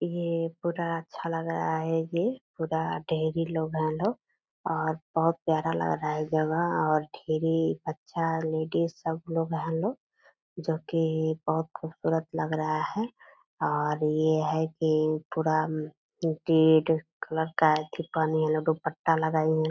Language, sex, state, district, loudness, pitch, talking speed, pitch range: Hindi, female, Bihar, Purnia, -28 LUFS, 160 Hz, 150 wpm, 155-165 Hz